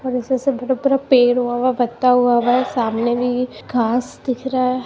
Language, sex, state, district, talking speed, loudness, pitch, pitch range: Hindi, female, Bihar, Muzaffarpur, 150 wpm, -18 LUFS, 250 Hz, 245-260 Hz